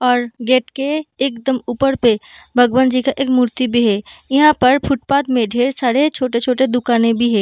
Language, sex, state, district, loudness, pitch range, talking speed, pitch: Hindi, female, Bihar, Darbhanga, -16 LUFS, 240-270 Hz, 185 wpm, 255 Hz